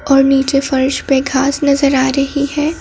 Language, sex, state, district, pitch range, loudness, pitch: Hindi, female, Madhya Pradesh, Bhopal, 270-285 Hz, -14 LUFS, 275 Hz